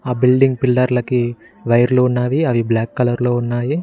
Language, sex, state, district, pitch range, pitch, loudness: Telugu, male, Telangana, Mahabubabad, 120-125 Hz, 125 Hz, -16 LUFS